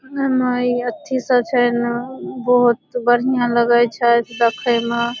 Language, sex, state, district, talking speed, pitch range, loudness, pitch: Maithili, female, Bihar, Supaul, 140 wpm, 240-250 Hz, -17 LUFS, 245 Hz